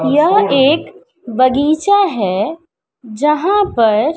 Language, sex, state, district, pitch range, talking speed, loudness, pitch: Hindi, female, Bihar, West Champaran, 250-335 Hz, 85 wpm, -13 LUFS, 300 Hz